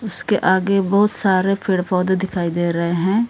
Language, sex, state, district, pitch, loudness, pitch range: Hindi, female, Bihar, Darbhanga, 190 Hz, -18 LUFS, 180-200 Hz